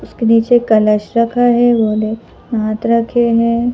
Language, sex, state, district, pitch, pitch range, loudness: Hindi, female, Madhya Pradesh, Bhopal, 230 Hz, 220-240 Hz, -13 LUFS